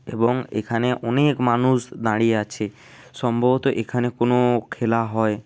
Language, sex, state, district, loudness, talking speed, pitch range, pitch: Bengali, male, West Bengal, Dakshin Dinajpur, -21 LUFS, 120 wpm, 115-125 Hz, 120 Hz